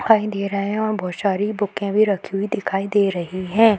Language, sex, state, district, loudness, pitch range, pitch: Hindi, female, Bihar, Darbhanga, -21 LUFS, 195-210 Hz, 200 Hz